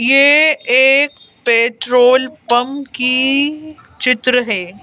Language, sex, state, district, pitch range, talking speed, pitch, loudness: Hindi, female, Madhya Pradesh, Bhopal, 245-280 Hz, 85 wpm, 260 Hz, -13 LUFS